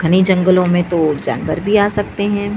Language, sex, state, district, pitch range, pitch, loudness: Hindi, female, Chhattisgarh, Bastar, 175-205 Hz, 185 Hz, -15 LUFS